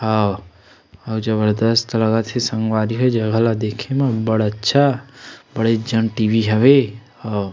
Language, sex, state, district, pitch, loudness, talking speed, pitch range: Chhattisgarhi, male, Chhattisgarh, Sarguja, 110 Hz, -18 LUFS, 160 wpm, 110-120 Hz